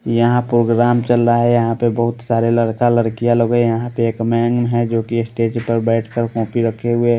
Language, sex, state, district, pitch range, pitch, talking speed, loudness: Hindi, male, Haryana, Rohtak, 115-120 Hz, 115 Hz, 210 wpm, -16 LUFS